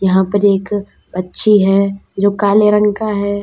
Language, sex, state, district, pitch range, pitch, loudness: Hindi, female, Uttar Pradesh, Lalitpur, 195-210 Hz, 200 Hz, -14 LUFS